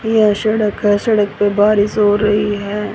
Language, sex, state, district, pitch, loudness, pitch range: Hindi, female, Haryana, Rohtak, 210 Hz, -15 LUFS, 205-215 Hz